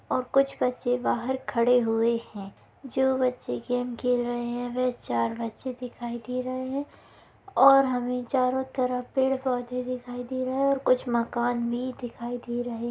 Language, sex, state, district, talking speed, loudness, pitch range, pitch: Hindi, female, Bihar, Begusarai, 175 wpm, -27 LUFS, 240-255 Hz, 250 Hz